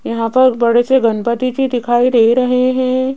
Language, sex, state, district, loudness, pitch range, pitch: Hindi, female, Rajasthan, Jaipur, -13 LUFS, 235-255 Hz, 250 Hz